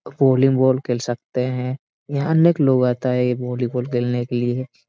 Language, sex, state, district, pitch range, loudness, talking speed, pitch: Hindi, male, Jharkhand, Sahebganj, 125-130 Hz, -20 LUFS, 170 wpm, 125 Hz